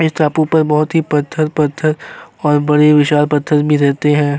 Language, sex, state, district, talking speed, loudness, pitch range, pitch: Hindi, male, Uttar Pradesh, Jyotiba Phule Nagar, 180 wpm, -13 LUFS, 150-155 Hz, 150 Hz